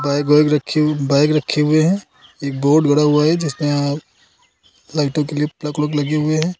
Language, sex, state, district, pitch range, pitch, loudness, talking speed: Hindi, male, Uttar Pradesh, Lucknow, 145-155 Hz, 150 Hz, -17 LUFS, 190 wpm